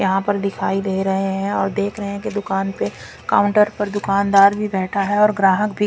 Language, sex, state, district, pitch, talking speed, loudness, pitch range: Hindi, female, Punjab, Kapurthala, 200 Hz, 225 wpm, -19 LUFS, 195-205 Hz